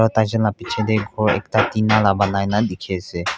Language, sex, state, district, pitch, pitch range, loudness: Nagamese, male, Nagaland, Kohima, 105 Hz, 100-110 Hz, -19 LUFS